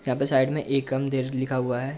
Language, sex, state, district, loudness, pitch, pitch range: Hindi, male, Uttar Pradesh, Jalaun, -25 LUFS, 130 Hz, 130-135 Hz